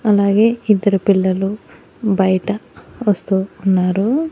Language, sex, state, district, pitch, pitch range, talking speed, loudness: Telugu, female, Andhra Pradesh, Annamaya, 200 Hz, 190-210 Hz, 85 wpm, -17 LUFS